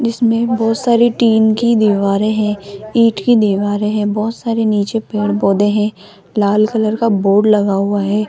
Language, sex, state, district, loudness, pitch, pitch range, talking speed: Hindi, female, Rajasthan, Jaipur, -14 LUFS, 215 Hz, 205-225 Hz, 175 wpm